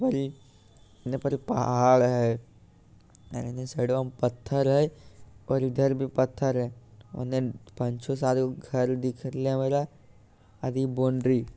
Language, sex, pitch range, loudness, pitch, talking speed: Bhojpuri, male, 120-135 Hz, -27 LUFS, 130 Hz, 165 wpm